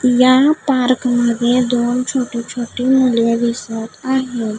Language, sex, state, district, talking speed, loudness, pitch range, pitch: Marathi, female, Maharashtra, Gondia, 115 wpm, -16 LUFS, 235-255 Hz, 245 Hz